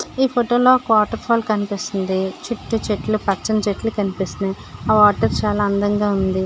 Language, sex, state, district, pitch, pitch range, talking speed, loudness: Telugu, female, Andhra Pradesh, Srikakulam, 210 Hz, 200-225 Hz, 160 wpm, -19 LUFS